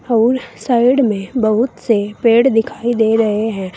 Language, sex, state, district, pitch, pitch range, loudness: Hindi, female, Uttar Pradesh, Saharanpur, 225 Hz, 220-240 Hz, -15 LUFS